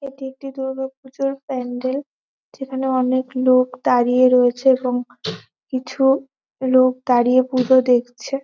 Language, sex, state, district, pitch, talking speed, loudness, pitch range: Bengali, female, West Bengal, Malda, 260 Hz, 105 wpm, -19 LUFS, 255-265 Hz